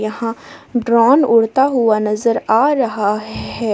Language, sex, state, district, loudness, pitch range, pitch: Hindi, female, Jharkhand, Palamu, -15 LUFS, 215-240 Hz, 230 Hz